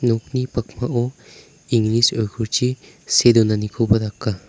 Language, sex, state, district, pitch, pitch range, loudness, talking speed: Garo, male, Meghalaya, South Garo Hills, 115 Hz, 110-125 Hz, -19 LUFS, 95 wpm